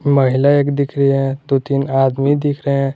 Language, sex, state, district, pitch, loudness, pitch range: Hindi, male, Jharkhand, Garhwa, 140 Hz, -16 LUFS, 135-140 Hz